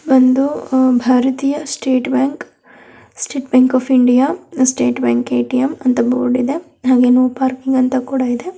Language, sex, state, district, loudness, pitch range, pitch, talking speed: Kannada, female, Karnataka, Belgaum, -15 LUFS, 250-270 Hz, 260 Hz, 145 wpm